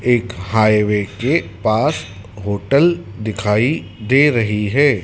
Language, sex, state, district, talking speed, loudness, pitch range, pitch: Hindi, male, Madhya Pradesh, Dhar, 105 wpm, -17 LUFS, 100-125 Hz, 110 Hz